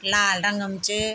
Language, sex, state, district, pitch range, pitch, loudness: Garhwali, female, Uttarakhand, Tehri Garhwal, 195-205 Hz, 205 Hz, -22 LUFS